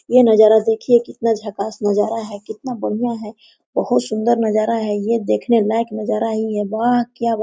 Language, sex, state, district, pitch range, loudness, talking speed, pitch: Hindi, female, Jharkhand, Sahebganj, 215-230 Hz, -18 LUFS, 185 wpm, 225 Hz